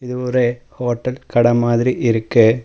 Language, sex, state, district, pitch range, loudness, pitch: Tamil, male, Tamil Nadu, Namakkal, 120-125 Hz, -17 LUFS, 120 Hz